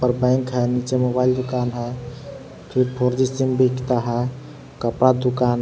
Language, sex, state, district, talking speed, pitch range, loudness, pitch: Hindi, male, Jharkhand, Palamu, 160 wpm, 125-130 Hz, -21 LUFS, 125 Hz